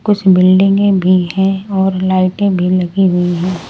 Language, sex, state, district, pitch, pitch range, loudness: Hindi, male, Delhi, New Delhi, 185 Hz, 180-195 Hz, -12 LUFS